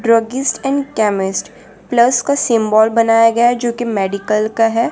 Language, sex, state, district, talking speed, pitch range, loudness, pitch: Hindi, female, Gujarat, Valsad, 160 wpm, 215-240 Hz, -15 LUFS, 230 Hz